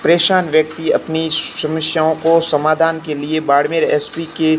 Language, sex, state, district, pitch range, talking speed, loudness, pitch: Hindi, male, Rajasthan, Barmer, 155-165 Hz, 145 wpm, -15 LUFS, 160 Hz